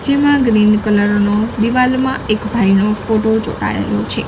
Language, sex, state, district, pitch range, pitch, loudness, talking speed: Gujarati, female, Gujarat, Gandhinagar, 205-235 Hz, 215 Hz, -14 LUFS, 140 wpm